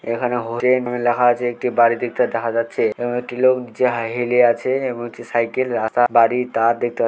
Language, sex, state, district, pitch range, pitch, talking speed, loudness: Bengali, male, West Bengal, Malda, 115-125 Hz, 120 Hz, 185 wpm, -19 LUFS